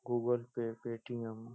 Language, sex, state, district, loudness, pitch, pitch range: Hindi, male, Uttar Pradesh, Ghazipur, -38 LUFS, 120 Hz, 115-120 Hz